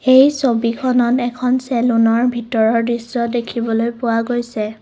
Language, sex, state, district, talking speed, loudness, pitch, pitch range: Assamese, female, Assam, Kamrup Metropolitan, 110 wpm, -17 LUFS, 235 Hz, 230-250 Hz